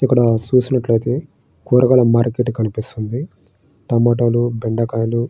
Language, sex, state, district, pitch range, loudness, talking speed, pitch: Telugu, male, Andhra Pradesh, Srikakulam, 115-125 Hz, -17 LUFS, 90 wpm, 120 Hz